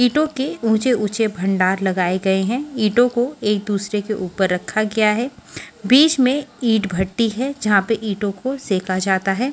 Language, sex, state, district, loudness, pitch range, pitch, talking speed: Hindi, female, Haryana, Charkhi Dadri, -19 LUFS, 195-250 Hz, 215 Hz, 180 wpm